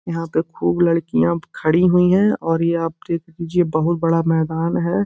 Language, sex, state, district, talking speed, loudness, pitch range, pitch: Hindi, male, Uttar Pradesh, Gorakhpur, 190 wpm, -18 LUFS, 160-170 Hz, 165 Hz